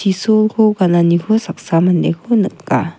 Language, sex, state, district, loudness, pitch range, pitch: Garo, female, Meghalaya, West Garo Hills, -14 LUFS, 170-215 Hz, 195 Hz